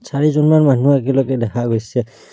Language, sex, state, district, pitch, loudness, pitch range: Assamese, male, Assam, Kamrup Metropolitan, 135 Hz, -15 LUFS, 120-140 Hz